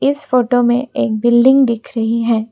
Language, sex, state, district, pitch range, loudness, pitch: Hindi, female, Assam, Kamrup Metropolitan, 230-260 Hz, -14 LUFS, 240 Hz